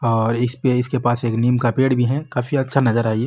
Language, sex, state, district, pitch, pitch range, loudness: Marwari, male, Rajasthan, Nagaur, 125 Hz, 115-130 Hz, -19 LUFS